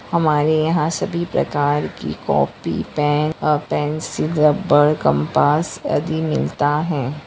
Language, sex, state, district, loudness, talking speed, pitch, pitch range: Hindi, female, Maharashtra, Chandrapur, -19 LUFS, 115 wpm, 150 Hz, 145-155 Hz